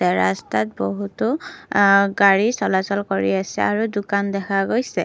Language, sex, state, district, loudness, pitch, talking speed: Assamese, female, Assam, Kamrup Metropolitan, -20 LUFS, 195 Hz, 120 wpm